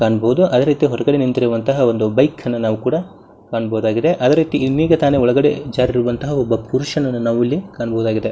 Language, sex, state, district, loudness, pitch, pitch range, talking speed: Kannada, male, Karnataka, Bijapur, -17 LUFS, 125 Hz, 115-145 Hz, 150 wpm